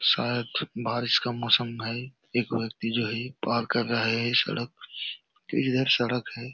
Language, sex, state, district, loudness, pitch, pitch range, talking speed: Hindi, male, Jharkhand, Jamtara, -27 LUFS, 120 Hz, 115-120 Hz, 155 wpm